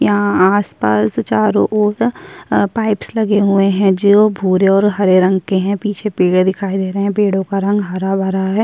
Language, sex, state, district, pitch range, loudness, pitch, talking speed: Hindi, female, Uttarakhand, Tehri Garhwal, 190-205 Hz, -14 LUFS, 195 Hz, 180 wpm